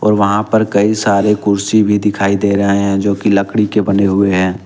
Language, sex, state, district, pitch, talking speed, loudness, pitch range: Hindi, male, Jharkhand, Ranchi, 100 Hz, 230 wpm, -13 LUFS, 100-105 Hz